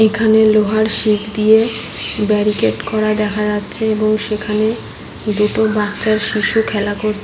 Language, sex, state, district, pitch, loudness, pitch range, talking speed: Bengali, female, West Bengal, Paschim Medinipur, 215 Hz, -15 LUFS, 210-220 Hz, 130 wpm